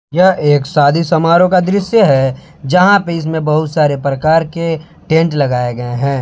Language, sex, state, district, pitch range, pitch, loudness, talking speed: Hindi, male, Jharkhand, Palamu, 140-170 Hz, 160 Hz, -13 LUFS, 175 wpm